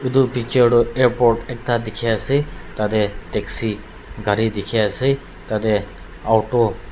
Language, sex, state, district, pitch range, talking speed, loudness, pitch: Nagamese, male, Nagaland, Dimapur, 105-120 Hz, 145 wpm, -19 LUFS, 110 Hz